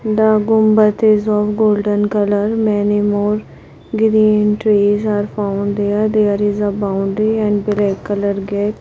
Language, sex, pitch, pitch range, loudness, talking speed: English, female, 210 Hz, 205-215 Hz, -15 LUFS, 145 wpm